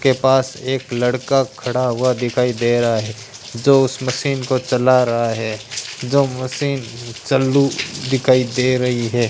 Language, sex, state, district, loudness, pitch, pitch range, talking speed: Hindi, male, Rajasthan, Bikaner, -18 LUFS, 125 Hz, 120-130 Hz, 155 wpm